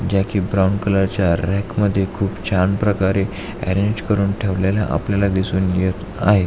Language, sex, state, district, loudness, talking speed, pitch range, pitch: Marathi, male, Maharashtra, Aurangabad, -19 LUFS, 150 wpm, 95-100 Hz, 95 Hz